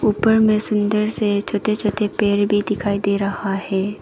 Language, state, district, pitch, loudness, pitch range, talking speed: Hindi, Arunachal Pradesh, Papum Pare, 205 Hz, -19 LUFS, 200-210 Hz, 180 wpm